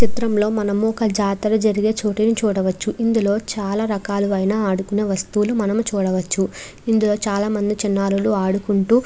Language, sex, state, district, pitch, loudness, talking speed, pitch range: Telugu, female, Andhra Pradesh, Krishna, 210 Hz, -20 LUFS, 140 wpm, 200-215 Hz